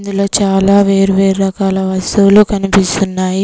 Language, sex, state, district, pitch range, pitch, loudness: Telugu, female, Telangana, Komaram Bheem, 190-200 Hz, 195 Hz, -11 LUFS